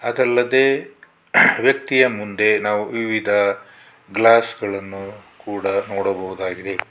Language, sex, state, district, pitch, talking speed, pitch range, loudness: Kannada, male, Karnataka, Bangalore, 105 Hz, 80 wpm, 100-115 Hz, -18 LUFS